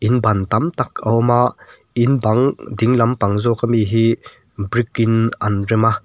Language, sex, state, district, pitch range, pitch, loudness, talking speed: Mizo, male, Mizoram, Aizawl, 110-120 Hz, 115 Hz, -17 LUFS, 180 wpm